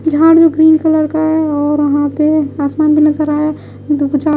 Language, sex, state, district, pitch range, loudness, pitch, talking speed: Hindi, female, Odisha, Malkangiri, 295-315 Hz, -12 LUFS, 305 Hz, 190 wpm